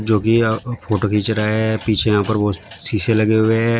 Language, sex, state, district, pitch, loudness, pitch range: Hindi, male, Uttar Pradesh, Shamli, 110 Hz, -17 LUFS, 105-115 Hz